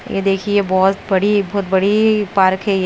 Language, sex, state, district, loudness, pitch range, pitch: Hindi, female, Punjab, Kapurthala, -16 LUFS, 190-205 Hz, 195 Hz